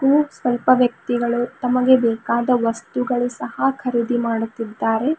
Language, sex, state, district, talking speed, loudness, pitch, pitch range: Kannada, female, Karnataka, Bidar, 105 wpm, -20 LUFS, 245 Hz, 230-255 Hz